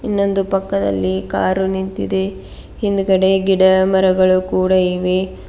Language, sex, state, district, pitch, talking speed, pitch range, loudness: Kannada, female, Karnataka, Bidar, 190 Hz, 100 wpm, 185-195 Hz, -16 LUFS